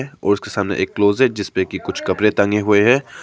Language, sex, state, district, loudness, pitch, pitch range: Hindi, male, Arunachal Pradesh, Papum Pare, -17 LUFS, 105 Hz, 100-110 Hz